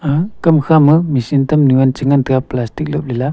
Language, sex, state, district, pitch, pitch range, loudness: Wancho, male, Arunachal Pradesh, Longding, 140 Hz, 130-155 Hz, -13 LUFS